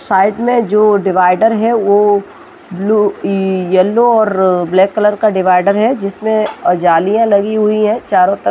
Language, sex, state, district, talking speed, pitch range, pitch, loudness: Hindi, female, Chhattisgarh, Raigarh, 90 wpm, 190-220 Hz, 205 Hz, -12 LUFS